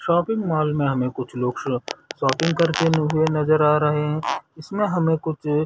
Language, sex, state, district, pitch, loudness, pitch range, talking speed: Hindi, male, Chhattisgarh, Sarguja, 155 Hz, -22 LUFS, 150-165 Hz, 180 wpm